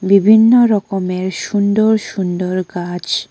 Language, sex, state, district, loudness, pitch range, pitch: Bengali, female, Tripura, West Tripura, -14 LUFS, 185-215 Hz, 195 Hz